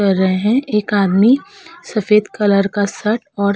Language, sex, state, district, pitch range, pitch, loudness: Hindi, female, Uttar Pradesh, Hamirpur, 200-240 Hz, 210 Hz, -16 LUFS